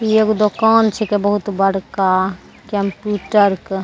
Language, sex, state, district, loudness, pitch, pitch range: Maithili, female, Bihar, Begusarai, -16 LUFS, 205 Hz, 195-215 Hz